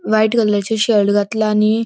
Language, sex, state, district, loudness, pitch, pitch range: Konkani, female, Goa, North and South Goa, -15 LUFS, 215 Hz, 210-220 Hz